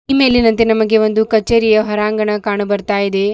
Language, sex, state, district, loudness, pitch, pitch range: Kannada, female, Karnataka, Bidar, -14 LUFS, 215 Hz, 210-225 Hz